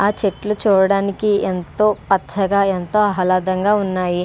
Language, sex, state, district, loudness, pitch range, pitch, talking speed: Telugu, female, Andhra Pradesh, Srikakulam, -17 LUFS, 185-205 Hz, 195 Hz, 115 wpm